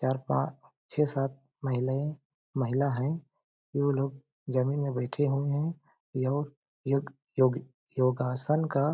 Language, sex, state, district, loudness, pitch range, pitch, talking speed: Hindi, male, Chhattisgarh, Balrampur, -31 LUFS, 130-145 Hz, 140 Hz, 135 wpm